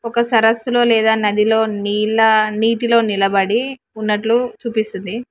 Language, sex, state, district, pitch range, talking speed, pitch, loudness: Telugu, female, Telangana, Hyderabad, 210-235 Hz, 100 wpm, 220 Hz, -16 LUFS